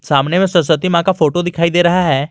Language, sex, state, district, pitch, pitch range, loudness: Hindi, male, Jharkhand, Garhwa, 170 Hz, 155-175 Hz, -14 LUFS